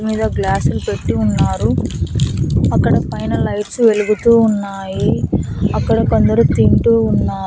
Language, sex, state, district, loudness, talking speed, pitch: Telugu, female, Andhra Pradesh, Annamaya, -15 LUFS, 105 wpm, 205 Hz